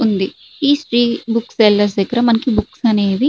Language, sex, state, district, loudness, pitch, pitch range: Telugu, female, Andhra Pradesh, Srikakulam, -16 LUFS, 230 Hz, 205-240 Hz